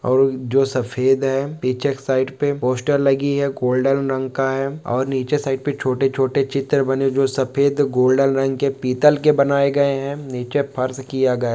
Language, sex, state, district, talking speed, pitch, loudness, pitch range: Hindi, male, West Bengal, North 24 Parganas, 180 wpm, 135 Hz, -19 LUFS, 130-140 Hz